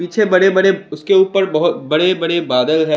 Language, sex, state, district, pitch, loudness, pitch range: Hindi, male, Chandigarh, Chandigarh, 180 Hz, -14 LUFS, 155-190 Hz